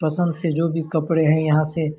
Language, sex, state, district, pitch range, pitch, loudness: Hindi, male, Chhattisgarh, Bastar, 155-165 Hz, 160 Hz, -20 LUFS